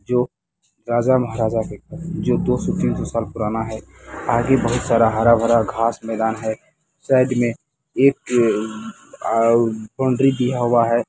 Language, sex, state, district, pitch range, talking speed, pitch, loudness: Hindi, male, Bihar, Muzaffarpur, 115-130 Hz, 150 wpm, 115 Hz, -19 LUFS